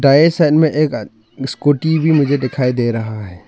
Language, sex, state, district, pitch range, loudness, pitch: Hindi, male, Arunachal Pradesh, Lower Dibang Valley, 120-155 Hz, -15 LUFS, 140 Hz